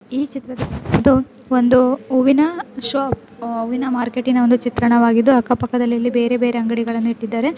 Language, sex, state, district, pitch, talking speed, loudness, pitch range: Kannada, female, Karnataka, Dharwad, 245 Hz, 125 wpm, -17 LUFS, 235-260 Hz